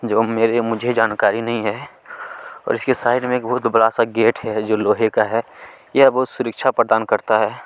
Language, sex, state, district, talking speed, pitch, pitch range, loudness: Hindi, male, Chhattisgarh, Kabirdham, 195 wpm, 115 Hz, 110-125 Hz, -18 LUFS